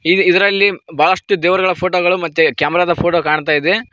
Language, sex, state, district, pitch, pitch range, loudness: Kannada, male, Karnataka, Koppal, 180 Hz, 170-200 Hz, -14 LUFS